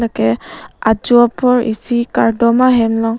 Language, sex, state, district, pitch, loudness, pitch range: Karbi, female, Assam, Karbi Anglong, 235 Hz, -14 LUFS, 225-240 Hz